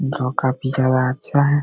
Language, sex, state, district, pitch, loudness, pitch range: Hindi, male, Bihar, Begusarai, 130 Hz, -19 LUFS, 130-140 Hz